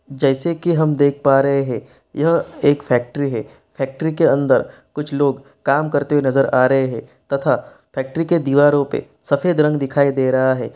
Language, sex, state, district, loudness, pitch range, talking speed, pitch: Hindi, male, Bihar, East Champaran, -18 LUFS, 135-150 Hz, 190 wpm, 140 Hz